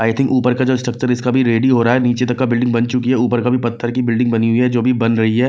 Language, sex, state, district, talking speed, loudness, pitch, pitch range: Hindi, male, Bihar, West Champaran, 360 wpm, -16 LUFS, 125 Hz, 120-125 Hz